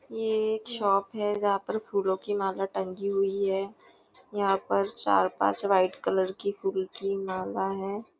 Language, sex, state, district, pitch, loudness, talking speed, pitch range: Hindi, female, Maharashtra, Nagpur, 195 Hz, -28 LUFS, 170 wpm, 190-205 Hz